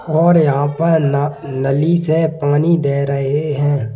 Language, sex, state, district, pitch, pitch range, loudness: Hindi, male, Madhya Pradesh, Bhopal, 145 Hz, 140-160 Hz, -15 LUFS